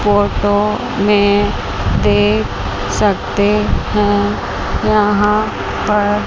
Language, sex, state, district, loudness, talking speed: Hindi, female, Chandigarh, Chandigarh, -15 LUFS, 65 wpm